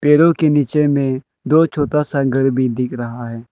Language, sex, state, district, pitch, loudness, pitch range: Hindi, male, Arunachal Pradesh, Lower Dibang Valley, 140 Hz, -16 LUFS, 125-150 Hz